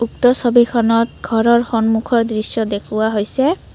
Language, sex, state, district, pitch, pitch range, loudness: Assamese, female, Assam, Kamrup Metropolitan, 230 Hz, 220-240 Hz, -16 LUFS